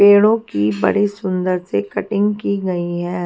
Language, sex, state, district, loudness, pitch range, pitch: Hindi, female, Haryana, Jhajjar, -18 LUFS, 175-205 Hz, 185 Hz